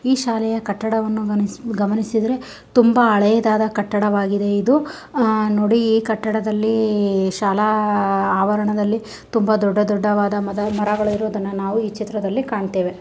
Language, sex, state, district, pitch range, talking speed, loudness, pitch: Kannada, female, Karnataka, Mysore, 205-225 Hz, 95 wpm, -19 LUFS, 210 Hz